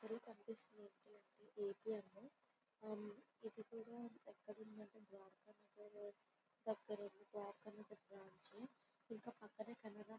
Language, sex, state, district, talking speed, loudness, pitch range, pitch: Telugu, female, Andhra Pradesh, Visakhapatnam, 90 wpm, -55 LUFS, 205-220 Hz, 215 Hz